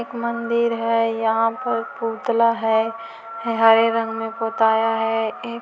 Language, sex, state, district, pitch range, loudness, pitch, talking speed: Hindi, female, Chhattisgarh, Korba, 225-230 Hz, -20 LUFS, 225 Hz, 140 wpm